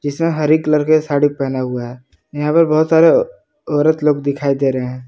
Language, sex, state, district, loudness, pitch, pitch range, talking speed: Hindi, male, Jharkhand, Palamu, -15 LUFS, 150 Hz, 135-155 Hz, 210 wpm